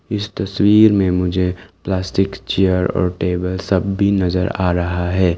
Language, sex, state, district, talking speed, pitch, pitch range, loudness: Hindi, male, Arunachal Pradesh, Lower Dibang Valley, 155 wpm, 95 Hz, 90-100 Hz, -17 LUFS